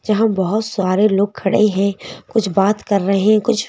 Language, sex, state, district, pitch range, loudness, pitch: Hindi, female, Madhya Pradesh, Bhopal, 195-215 Hz, -16 LUFS, 205 Hz